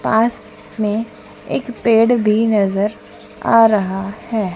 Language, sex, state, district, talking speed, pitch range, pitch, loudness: Hindi, female, Madhya Pradesh, Dhar, 120 wpm, 210-230 Hz, 220 Hz, -17 LUFS